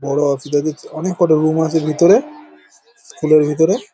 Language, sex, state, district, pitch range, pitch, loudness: Bengali, male, West Bengal, Paschim Medinipur, 150-200 Hz, 160 Hz, -16 LUFS